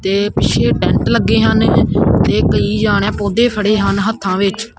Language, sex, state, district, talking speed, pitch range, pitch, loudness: Punjabi, male, Punjab, Kapurthala, 165 wpm, 195-220 Hz, 205 Hz, -14 LUFS